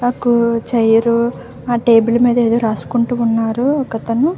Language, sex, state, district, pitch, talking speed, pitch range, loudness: Telugu, female, Andhra Pradesh, Visakhapatnam, 235 Hz, 135 wpm, 230-245 Hz, -15 LUFS